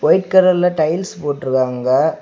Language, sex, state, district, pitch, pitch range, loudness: Tamil, male, Tamil Nadu, Kanyakumari, 160 Hz, 130-185 Hz, -16 LUFS